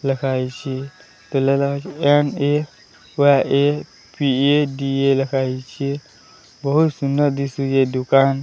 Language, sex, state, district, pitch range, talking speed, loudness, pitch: Odia, male, Odisha, Sambalpur, 135-145 Hz, 50 wpm, -19 LUFS, 140 Hz